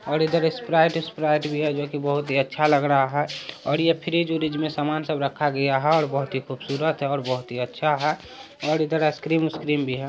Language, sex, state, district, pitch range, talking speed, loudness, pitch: Hindi, male, Bihar, Araria, 140-155 Hz, 230 wpm, -23 LUFS, 150 Hz